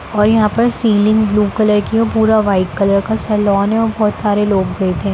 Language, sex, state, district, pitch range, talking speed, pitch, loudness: Hindi, female, Bihar, Samastipur, 200-220 Hz, 245 wpm, 210 Hz, -14 LUFS